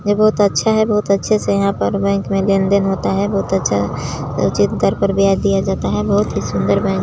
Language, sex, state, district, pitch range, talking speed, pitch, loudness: Hindi, male, Chhattisgarh, Balrampur, 190-200 Hz, 190 wpm, 195 Hz, -16 LUFS